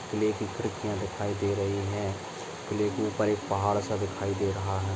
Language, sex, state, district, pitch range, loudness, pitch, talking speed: Hindi, male, Maharashtra, Aurangabad, 100-105 Hz, -30 LUFS, 100 Hz, 195 wpm